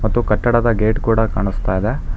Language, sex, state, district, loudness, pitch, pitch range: Kannada, male, Karnataka, Bangalore, -17 LUFS, 110 Hz, 105-120 Hz